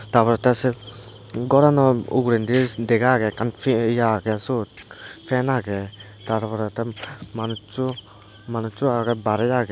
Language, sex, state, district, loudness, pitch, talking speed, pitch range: Chakma, male, Tripura, Dhalai, -22 LUFS, 115 Hz, 130 wpm, 110-125 Hz